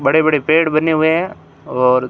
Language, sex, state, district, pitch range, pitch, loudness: Hindi, male, Rajasthan, Bikaner, 145-160 Hz, 155 Hz, -15 LUFS